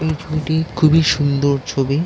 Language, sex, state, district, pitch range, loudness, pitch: Bengali, male, West Bengal, Dakshin Dinajpur, 140-160 Hz, -17 LUFS, 155 Hz